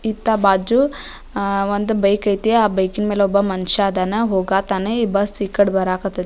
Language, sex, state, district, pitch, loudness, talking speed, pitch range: Kannada, female, Karnataka, Dharwad, 200 Hz, -18 LUFS, 175 wpm, 195-215 Hz